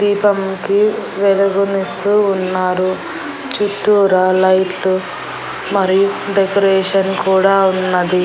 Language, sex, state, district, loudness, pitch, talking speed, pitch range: Telugu, female, Andhra Pradesh, Annamaya, -15 LUFS, 195 Hz, 75 wpm, 185-200 Hz